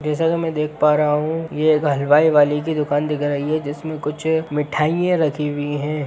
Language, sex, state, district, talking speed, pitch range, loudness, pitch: Hindi, male, Bihar, Sitamarhi, 215 wpm, 150-155 Hz, -19 LUFS, 150 Hz